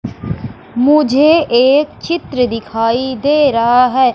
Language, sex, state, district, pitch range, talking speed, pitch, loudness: Hindi, female, Madhya Pradesh, Katni, 240-295 Hz, 100 wpm, 260 Hz, -13 LUFS